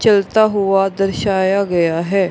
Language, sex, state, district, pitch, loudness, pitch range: Hindi, female, Bihar, Gaya, 195 Hz, -15 LUFS, 190-200 Hz